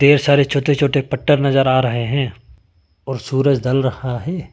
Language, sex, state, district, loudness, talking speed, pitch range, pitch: Hindi, male, Arunachal Pradesh, Lower Dibang Valley, -17 LUFS, 185 wpm, 125-140 Hz, 135 Hz